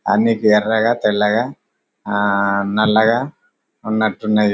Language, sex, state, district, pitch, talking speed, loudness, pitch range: Telugu, male, Telangana, Karimnagar, 110 Hz, 105 wpm, -17 LUFS, 105-110 Hz